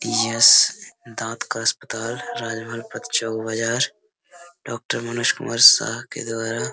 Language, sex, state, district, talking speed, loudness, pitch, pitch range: Hindi, male, Jharkhand, Sahebganj, 135 wpm, -19 LUFS, 115 Hz, 115-145 Hz